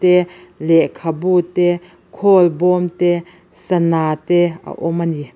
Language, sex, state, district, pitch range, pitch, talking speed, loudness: Mizo, female, Mizoram, Aizawl, 165-180 Hz, 175 Hz, 110 wpm, -16 LUFS